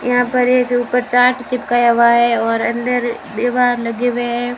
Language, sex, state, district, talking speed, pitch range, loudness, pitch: Hindi, female, Rajasthan, Bikaner, 195 wpm, 235-250 Hz, -15 LUFS, 245 Hz